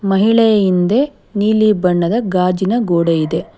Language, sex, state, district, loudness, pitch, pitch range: Kannada, female, Karnataka, Bangalore, -14 LUFS, 195 Hz, 180-220 Hz